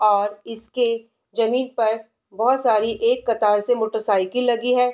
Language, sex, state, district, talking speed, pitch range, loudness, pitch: Hindi, female, Bihar, Darbhanga, 145 wpm, 215-245 Hz, -21 LUFS, 225 Hz